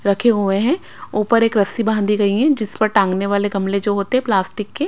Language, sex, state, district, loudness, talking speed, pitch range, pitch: Hindi, female, Bihar, Patna, -18 LUFS, 235 wpm, 200-230 Hz, 210 Hz